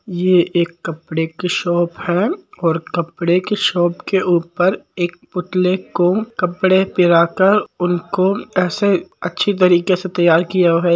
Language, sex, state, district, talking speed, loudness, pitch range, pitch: Marwari, male, Rajasthan, Nagaur, 140 wpm, -17 LUFS, 175-185 Hz, 180 Hz